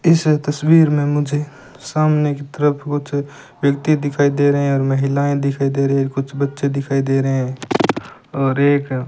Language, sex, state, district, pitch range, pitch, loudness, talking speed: Hindi, male, Rajasthan, Bikaner, 135-145 Hz, 140 Hz, -18 LUFS, 185 wpm